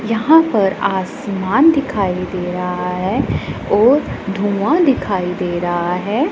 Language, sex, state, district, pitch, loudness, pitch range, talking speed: Hindi, female, Punjab, Pathankot, 195 Hz, -16 LUFS, 180-260 Hz, 125 wpm